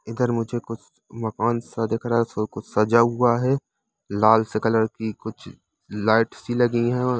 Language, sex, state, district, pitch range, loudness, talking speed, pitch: Hindi, male, Jharkhand, Jamtara, 110-120 Hz, -22 LUFS, 190 wpm, 115 Hz